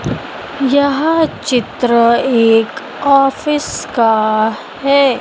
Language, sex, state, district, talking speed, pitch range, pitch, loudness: Hindi, female, Madhya Pradesh, Dhar, 70 wpm, 225-280 Hz, 255 Hz, -14 LUFS